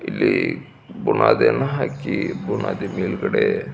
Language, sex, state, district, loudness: Kannada, male, Karnataka, Belgaum, -21 LUFS